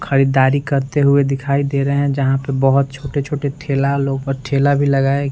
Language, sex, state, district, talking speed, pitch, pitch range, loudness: Hindi, male, Bihar, Saran, 205 wpm, 140 Hz, 135-140 Hz, -17 LUFS